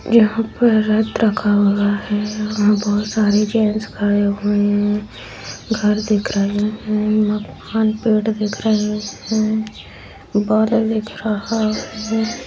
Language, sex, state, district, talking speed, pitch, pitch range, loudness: Hindi, female, Bihar, Jahanabad, 135 wpm, 215 Hz, 210-220 Hz, -18 LUFS